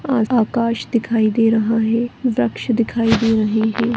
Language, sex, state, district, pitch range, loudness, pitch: Hindi, female, Goa, North and South Goa, 220-235 Hz, -17 LUFS, 230 Hz